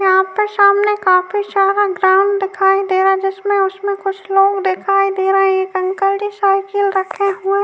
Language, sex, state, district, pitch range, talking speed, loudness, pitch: Hindi, female, Uttar Pradesh, Jyotiba Phule Nagar, 385-400 Hz, 190 wpm, -15 LUFS, 390 Hz